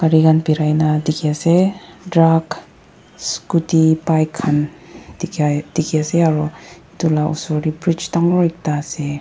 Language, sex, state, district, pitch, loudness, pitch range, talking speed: Nagamese, female, Nagaland, Dimapur, 160 Hz, -17 LUFS, 155-170 Hz, 125 wpm